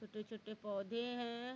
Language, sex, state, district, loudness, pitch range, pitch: Hindi, female, Uttar Pradesh, Varanasi, -44 LUFS, 215-235 Hz, 220 Hz